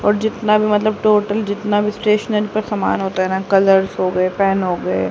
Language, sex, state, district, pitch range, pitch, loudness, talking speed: Hindi, female, Haryana, Rohtak, 190-210 Hz, 205 Hz, -17 LUFS, 225 wpm